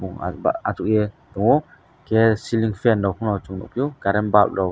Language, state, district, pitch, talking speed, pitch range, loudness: Kokborok, Tripura, West Tripura, 105 Hz, 150 wpm, 100-115 Hz, -21 LUFS